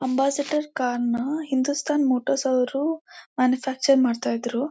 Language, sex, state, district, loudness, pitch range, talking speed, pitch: Kannada, female, Karnataka, Mysore, -23 LUFS, 255-285 Hz, 115 wpm, 265 Hz